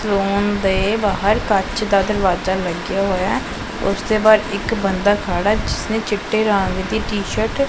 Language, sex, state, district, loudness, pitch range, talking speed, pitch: Punjabi, male, Punjab, Pathankot, -18 LUFS, 195-215 Hz, 150 wpm, 205 Hz